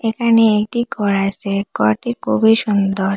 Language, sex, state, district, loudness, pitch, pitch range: Bengali, female, Assam, Hailakandi, -16 LUFS, 210 Hz, 195-225 Hz